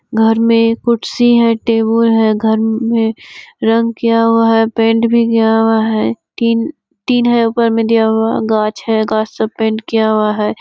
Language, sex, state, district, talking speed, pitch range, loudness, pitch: Hindi, female, Bihar, Kishanganj, 185 wpm, 220-230 Hz, -13 LUFS, 225 Hz